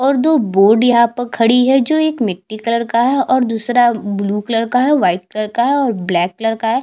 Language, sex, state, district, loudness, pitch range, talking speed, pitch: Hindi, female, Chhattisgarh, Jashpur, -15 LUFS, 215-255 Hz, 245 wpm, 235 Hz